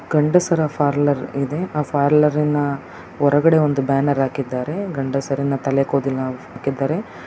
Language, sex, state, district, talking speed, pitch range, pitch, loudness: Kannada, male, Karnataka, Dakshina Kannada, 105 wpm, 135-150 Hz, 140 Hz, -19 LUFS